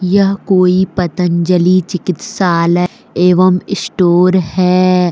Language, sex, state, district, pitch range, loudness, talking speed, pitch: Hindi, female, Jharkhand, Deoghar, 180-185 Hz, -12 LUFS, 80 wpm, 180 Hz